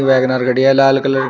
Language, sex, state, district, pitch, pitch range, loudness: Hindi, male, Uttar Pradesh, Shamli, 135 Hz, 130-135 Hz, -13 LUFS